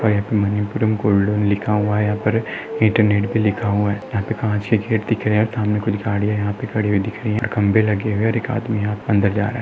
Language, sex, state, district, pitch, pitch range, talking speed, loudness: Hindi, male, Maharashtra, Nagpur, 105 Hz, 105-110 Hz, 280 wpm, -19 LUFS